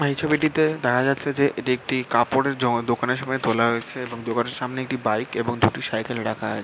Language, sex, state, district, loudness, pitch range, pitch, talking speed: Bengali, male, West Bengal, Jhargram, -23 LUFS, 115-135 Hz, 125 Hz, 200 wpm